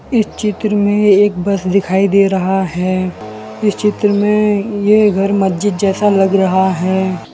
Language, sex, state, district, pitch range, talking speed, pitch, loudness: Hindi, male, Gujarat, Valsad, 190-205 Hz, 155 wpm, 195 Hz, -14 LUFS